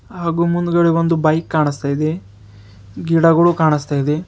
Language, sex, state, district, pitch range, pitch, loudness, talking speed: Kannada, male, Karnataka, Bidar, 145-170 Hz, 160 Hz, -16 LUFS, 125 wpm